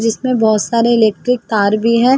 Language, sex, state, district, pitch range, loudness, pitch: Hindi, female, Uttar Pradesh, Jalaun, 215-245 Hz, -14 LUFS, 230 Hz